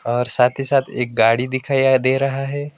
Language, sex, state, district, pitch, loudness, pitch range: Hindi, male, West Bengal, Alipurduar, 130 Hz, -18 LUFS, 125-135 Hz